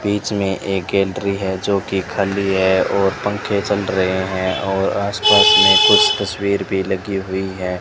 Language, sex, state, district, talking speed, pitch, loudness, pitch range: Hindi, male, Rajasthan, Bikaner, 175 wpm, 95 Hz, -16 LUFS, 95-100 Hz